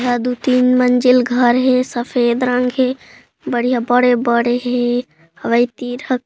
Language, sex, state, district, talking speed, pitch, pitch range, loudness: Hindi, female, Chhattisgarh, Kabirdham, 145 wpm, 245 Hz, 240-250 Hz, -16 LUFS